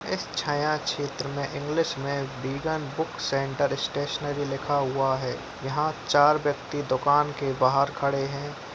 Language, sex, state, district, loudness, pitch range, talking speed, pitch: Hindi, male, Bihar, Darbhanga, -27 LUFS, 135-145 Hz, 145 wpm, 140 Hz